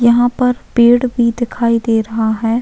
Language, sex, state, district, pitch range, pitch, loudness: Hindi, female, Uttarakhand, Tehri Garhwal, 230-245 Hz, 235 Hz, -14 LUFS